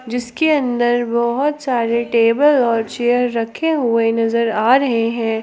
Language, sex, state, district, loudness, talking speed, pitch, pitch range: Hindi, female, Jharkhand, Palamu, -16 LUFS, 145 wpm, 240 Hz, 230-255 Hz